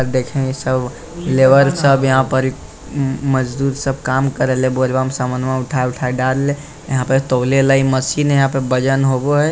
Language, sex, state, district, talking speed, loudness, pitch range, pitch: Maithili, male, Bihar, Lakhisarai, 210 wpm, -16 LUFS, 130-135 Hz, 130 Hz